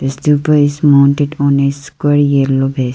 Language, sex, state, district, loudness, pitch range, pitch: English, female, Arunachal Pradesh, Lower Dibang Valley, -12 LUFS, 135-145 Hz, 140 Hz